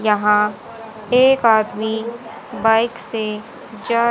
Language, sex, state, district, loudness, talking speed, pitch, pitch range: Hindi, female, Haryana, Jhajjar, -17 LUFS, 90 wpm, 225 Hz, 215-235 Hz